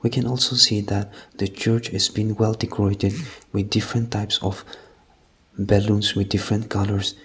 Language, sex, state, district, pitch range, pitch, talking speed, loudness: English, male, Nagaland, Kohima, 100-115 Hz, 105 Hz, 155 wpm, -22 LUFS